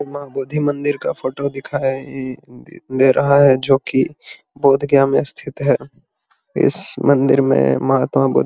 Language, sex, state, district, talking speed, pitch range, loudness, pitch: Magahi, male, Bihar, Gaya, 155 wpm, 130-140 Hz, -17 LUFS, 135 Hz